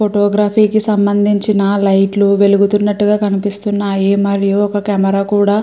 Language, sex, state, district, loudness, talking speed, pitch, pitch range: Telugu, female, Andhra Pradesh, Srikakulam, -13 LUFS, 130 wpm, 205 Hz, 200-205 Hz